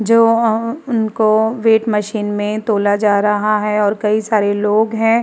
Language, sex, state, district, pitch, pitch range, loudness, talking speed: Hindi, female, Uttar Pradesh, Muzaffarnagar, 215 Hz, 210-225 Hz, -15 LUFS, 185 wpm